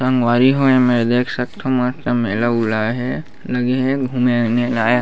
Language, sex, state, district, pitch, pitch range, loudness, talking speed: Chhattisgarhi, male, Chhattisgarh, Bastar, 125 Hz, 120-130 Hz, -17 LUFS, 180 wpm